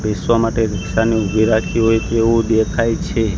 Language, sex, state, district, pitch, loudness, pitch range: Gujarati, male, Gujarat, Gandhinagar, 110 Hz, -16 LUFS, 110-115 Hz